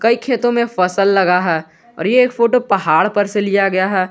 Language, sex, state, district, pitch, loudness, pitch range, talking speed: Hindi, male, Jharkhand, Garhwa, 200 Hz, -15 LUFS, 185-235 Hz, 235 wpm